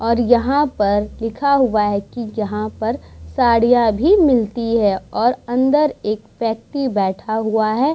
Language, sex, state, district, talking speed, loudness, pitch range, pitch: Hindi, female, Bihar, Vaishali, 165 wpm, -17 LUFS, 215-255 Hz, 230 Hz